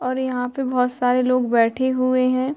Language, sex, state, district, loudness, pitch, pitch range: Hindi, female, Bihar, Muzaffarpur, -20 LUFS, 255 Hz, 250-260 Hz